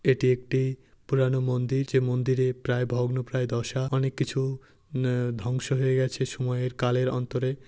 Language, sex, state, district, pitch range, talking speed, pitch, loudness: Bengali, male, West Bengal, Paschim Medinipur, 125-130 Hz, 150 wpm, 130 Hz, -27 LUFS